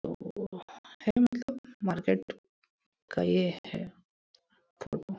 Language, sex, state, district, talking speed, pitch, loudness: Hindi, female, Bihar, Muzaffarpur, 60 wpm, 195 Hz, -32 LUFS